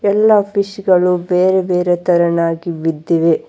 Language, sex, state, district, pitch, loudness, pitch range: Kannada, female, Karnataka, Bangalore, 180 Hz, -15 LUFS, 170-195 Hz